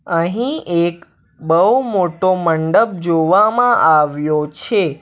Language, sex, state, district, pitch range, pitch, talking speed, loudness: Gujarati, male, Gujarat, Valsad, 160-205 Hz, 170 Hz, 95 wpm, -15 LUFS